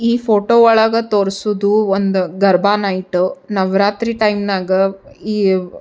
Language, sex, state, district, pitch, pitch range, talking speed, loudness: Kannada, female, Karnataka, Bijapur, 200 Hz, 190-215 Hz, 105 wpm, -15 LUFS